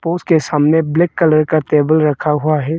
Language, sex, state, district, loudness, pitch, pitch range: Hindi, male, Arunachal Pradesh, Longding, -14 LUFS, 155 Hz, 150-165 Hz